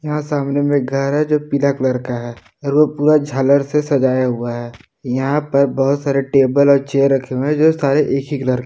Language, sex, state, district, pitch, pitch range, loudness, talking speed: Hindi, male, Jharkhand, Palamu, 140 Hz, 130-145 Hz, -16 LUFS, 220 wpm